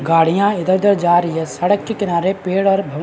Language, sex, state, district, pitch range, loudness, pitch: Hindi, male, Bihar, Madhepura, 165-200 Hz, -16 LUFS, 185 Hz